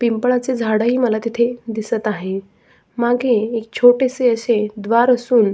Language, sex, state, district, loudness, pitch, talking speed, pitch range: Marathi, female, Maharashtra, Sindhudurg, -17 LUFS, 235 Hz, 140 wpm, 220-245 Hz